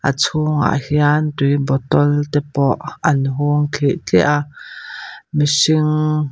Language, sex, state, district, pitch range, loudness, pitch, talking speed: Mizo, female, Mizoram, Aizawl, 140-150 Hz, -17 LUFS, 145 Hz, 135 wpm